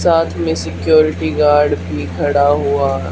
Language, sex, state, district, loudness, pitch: Hindi, female, Haryana, Charkhi Dadri, -15 LUFS, 135 Hz